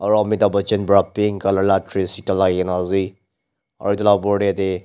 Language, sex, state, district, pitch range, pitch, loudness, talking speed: Nagamese, male, Nagaland, Dimapur, 95-100 Hz, 100 Hz, -18 LUFS, 220 wpm